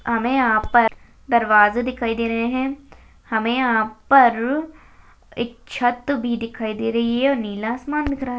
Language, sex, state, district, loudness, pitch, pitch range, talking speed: Hindi, female, Chhattisgarh, Jashpur, -20 LUFS, 235 Hz, 230-260 Hz, 165 wpm